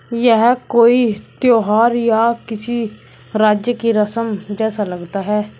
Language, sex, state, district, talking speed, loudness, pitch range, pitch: Hindi, male, Uttar Pradesh, Shamli, 120 wpm, -16 LUFS, 210-235 Hz, 225 Hz